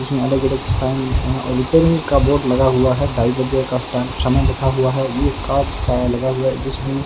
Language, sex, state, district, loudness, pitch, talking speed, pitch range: Hindi, male, Rajasthan, Bikaner, -18 LUFS, 130 Hz, 220 wpm, 130-135 Hz